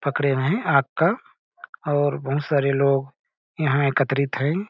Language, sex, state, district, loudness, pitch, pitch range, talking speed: Hindi, male, Chhattisgarh, Balrampur, -22 LUFS, 140 Hz, 140-150 Hz, 140 wpm